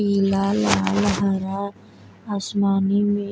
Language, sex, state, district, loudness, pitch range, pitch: Bhojpuri, female, Uttar Pradesh, Deoria, -21 LUFS, 190-200 Hz, 195 Hz